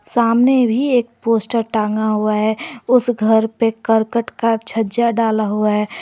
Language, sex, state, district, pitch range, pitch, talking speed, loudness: Hindi, female, Jharkhand, Garhwa, 220-235 Hz, 225 Hz, 160 wpm, -17 LUFS